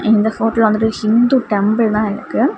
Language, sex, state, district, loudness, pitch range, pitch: Tamil, female, Tamil Nadu, Kanyakumari, -15 LUFS, 215-225 Hz, 220 Hz